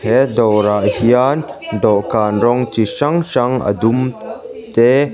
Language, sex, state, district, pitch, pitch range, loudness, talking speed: Mizo, male, Mizoram, Aizawl, 120 Hz, 110-130 Hz, -15 LUFS, 130 wpm